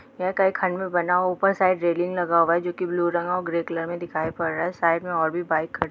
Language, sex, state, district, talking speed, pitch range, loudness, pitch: Hindi, female, Bihar, Sitamarhi, 295 wpm, 170-180 Hz, -23 LUFS, 175 Hz